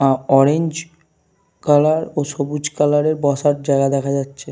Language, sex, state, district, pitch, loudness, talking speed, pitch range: Bengali, male, Jharkhand, Jamtara, 145 Hz, -17 LUFS, 145 wpm, 140-155 Hz